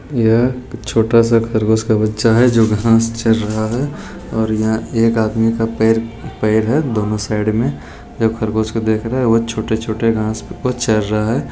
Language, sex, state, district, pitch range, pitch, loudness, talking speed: Hindi, male, Bihar, Jamui, 110-115 Hz, 115 Hz, -16 LUFS, 180 wpm